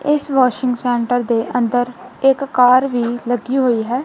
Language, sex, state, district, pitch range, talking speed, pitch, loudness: Punjabi, female, Punjab, Kapurthala, 245-260 Hz, 165 wpm, 245 Hz, -16 LUFS